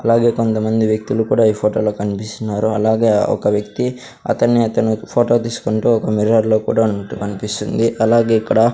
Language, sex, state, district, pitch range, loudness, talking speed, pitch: Telugu, male, Andhra Pradesh, Sri Satya Sai, 105-115 Hz, -16 LUFS, 165 wpm, 110 Hz